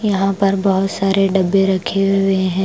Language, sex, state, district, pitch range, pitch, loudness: Hindi, female, Punjab, Pathankot, 190-195 Hz, 195 Hz, -16 LUFS